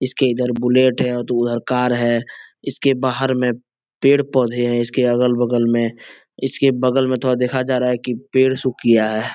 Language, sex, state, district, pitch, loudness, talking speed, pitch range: Hindi, male, Uttar Pradesh, Etah, 125 Hz, -18 LUFS, 190 wpm, 120-130 Hz